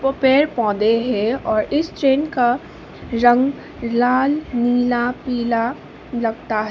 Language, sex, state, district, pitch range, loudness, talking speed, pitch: Hindi, female, Sikkim, Gangtok, 230-270 Hz, -19 LUFS, 115 wpm, 245 Hz